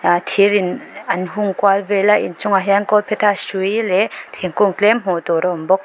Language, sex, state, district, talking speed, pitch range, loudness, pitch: Mizo, female, Mizoram, Aizawl, 215 wpm, 185-205 Hz, -16 LUFS, 200 Hz